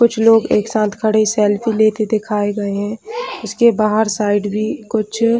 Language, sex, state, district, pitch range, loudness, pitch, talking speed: Hindi, female, Chhattisgarh, Bilaspur, 210-225 Hz, -16 LUFS, 215 Hz, 190 wpm